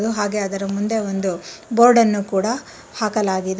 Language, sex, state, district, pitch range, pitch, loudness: Kannada, female, Karnataka, Bangalore, 195-225 Hz, 210 Hz, -19 LUFS